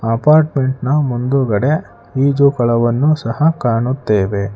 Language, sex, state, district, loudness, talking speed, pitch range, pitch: Kannada, male, Karnataka, Bangalore, -15 LUFS, 80 wpm, 115-140 Hz, 130 Hz